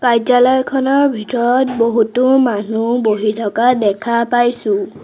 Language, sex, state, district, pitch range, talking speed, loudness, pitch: Assamese, female, Assam, Sonitpur, 220-250 Hz, 95 wpm, -14 LUFS, 240 Hz